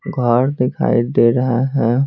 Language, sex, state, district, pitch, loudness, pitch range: Hindi, male, Bihar, Patna, 125 Hz, -16 LUFS, 120-135 Hz